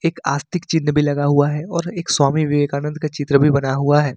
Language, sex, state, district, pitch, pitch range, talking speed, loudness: Hindi, male, Jharkhand, Ranchi, 150 Hz, 145-160 Hz, 245 wpm, -18 LUFS